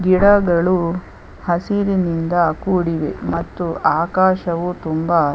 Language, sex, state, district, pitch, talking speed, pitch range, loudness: Kannada, female, Karnataka, Chamarajanagar, 175 Hz, 65 wpm, 170-185 Hz, -18 LUFS